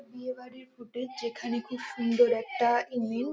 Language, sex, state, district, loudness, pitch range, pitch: Bengali, female, West Bengal, North 24 Parganas, -30 LUFS, 235-255 Hz, 245 Hz